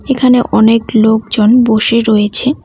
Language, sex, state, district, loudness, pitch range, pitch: Bengali, female, West Bengal, Cooch Behar, -10 LUFS, 220-245 Hz, 225 Hz